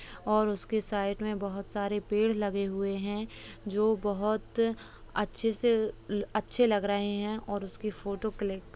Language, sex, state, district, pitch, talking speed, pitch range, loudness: Hindi, female, Uttar Pradesh, Jalaun, 210 Hz, 155 wpm, 200-215 Hz, -31 LUFS